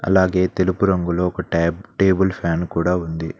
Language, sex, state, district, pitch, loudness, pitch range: Telugu, male, Telangana, Mahabubabad, 90 Hz, -19 LUFS, 85-95 Hz